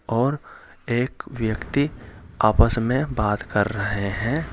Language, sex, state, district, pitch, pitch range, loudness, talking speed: Hindi, male, Uttar Pradesh, Saharanpur, 115 Hz, 105-125 Hz, -23 LUFS, 120 wpm